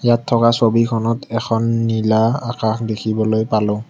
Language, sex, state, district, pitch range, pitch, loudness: Assamese, male, Assam, Kamrup Metropolitan, 110-115 Hz, 115 Hz, -17 LUFS